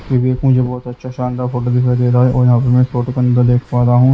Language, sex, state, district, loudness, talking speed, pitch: Hindi, male, Haryana, Jhajjar, -14 LUFS, 305 wpm, 125 Hz